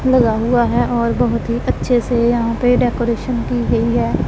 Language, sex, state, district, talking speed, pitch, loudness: Hindi, female, Punjab, Pathankot, 195 wpm, 235 Hz, -16 LUFS